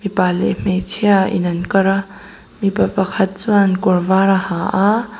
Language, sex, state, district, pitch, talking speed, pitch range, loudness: Mizo, female, Mizoram, Aizawl, 195 Hz, 175 wpm, 190-200 Hz, -16 LUFS